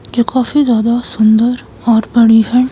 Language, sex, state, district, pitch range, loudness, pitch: Hindi, female, Himachal Pradesh, Shimla, 225-250 Hz, -12 LUFS, 235 Hz